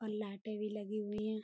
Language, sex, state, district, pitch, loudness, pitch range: Hindi, female, Uttar Pradesh, Budaun, 215 Hz, -41 LUFS, 210-215 Hz